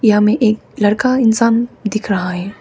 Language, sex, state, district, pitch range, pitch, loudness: Hindi, female, Arunachal Pradesh, Papum Pare, 210-230 Hz, 215 Hz, -15 LUFS